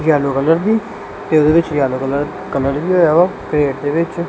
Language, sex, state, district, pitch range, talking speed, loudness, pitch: Punjabi, male, Punjab, Kapurthala, 140-170 Hz, 180 wpm, -15 LUFS, 155 Hz